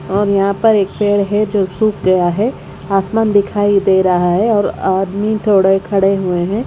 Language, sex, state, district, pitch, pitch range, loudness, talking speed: Hindi, female, Odisha, Khordha, 200 Hz, 190-210 Hz, -14 LUFS, 190 wpm